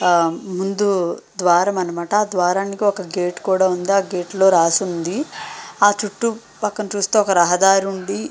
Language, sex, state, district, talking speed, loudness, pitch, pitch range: Telugu, female, Andhra Pradesh, Srikakulam, 160 wpm, -18 LUFS, 190 Hz, 180-205 Hz